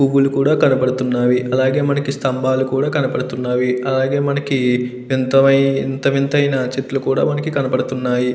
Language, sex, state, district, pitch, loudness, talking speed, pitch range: Telugu, male, Andhra Pradesh, Krishna, 135 Hz, -17 LUFS, 115 wpm, 130-140 Hz